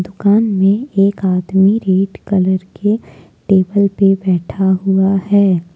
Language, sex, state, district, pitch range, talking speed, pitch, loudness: Hindi, female, Jharkhand, Deoghar, 185-200 Hz, 125 wpm, 195 Hz, -14 LUFS